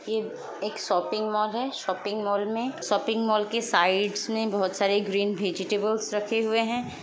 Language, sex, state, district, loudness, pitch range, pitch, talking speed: Hindi, female, Chhattisgarh, Sukma, -27 LUFS, 205-225 Hz, 210 Hz, 170 wpm